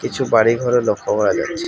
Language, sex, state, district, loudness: Bengali, male, West Bengal, Alipurduar, -17 LUFS